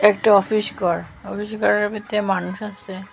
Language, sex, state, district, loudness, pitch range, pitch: Bengali, female, Assam, Hailakandi, -21 LUFS, 195-210 Hz, 205 Hz